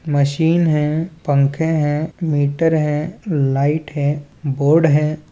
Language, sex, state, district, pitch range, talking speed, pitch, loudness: Chhattisgarhi, male, Chhattisgarh, Balrampur, 145-160 Hz, 115 wpm, 150 Hz, -18 LUFS